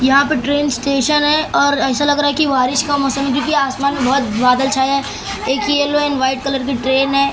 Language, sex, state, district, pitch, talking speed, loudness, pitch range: Hindi, male, Maharashtra, Mumbai Suburban, 275 Hz, 235 wpm, -15 LUFS, 265-285 Hz